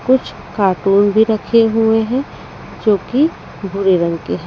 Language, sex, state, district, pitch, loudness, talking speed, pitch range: Hindi, female, Haryana, Rohtak, 215 Hz, -15 LUFS, 160 wpm, 195-230 Hz